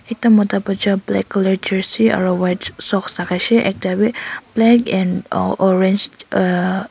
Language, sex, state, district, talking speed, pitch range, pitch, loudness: Nagamese, female, Nagaland, Kohima, 165 wpm, 185-215 Hz, 195 Hz, -17 LUFS